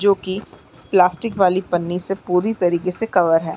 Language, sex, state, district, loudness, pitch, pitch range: Hindi, female, Uttarakhand, Uttarkashi, -19 LUFS, 185 Hz, 175-195 Hz